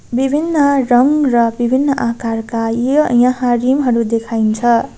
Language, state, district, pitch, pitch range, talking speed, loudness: Nepali, West Bengal, Darjeeling, 245 Hz, 230-270 Hz, 120 wpm, -14 LUFS